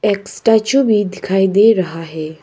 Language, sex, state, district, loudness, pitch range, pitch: Hindi, female, Arunachal Pradesh, Papum Pare, -14 LUFS, 180-215 Hz, 200 Hz